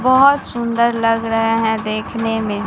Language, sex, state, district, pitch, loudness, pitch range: Hindi, female, Bihar, Katihar, 225 Hz, -17 LUFS, 220-235 Hz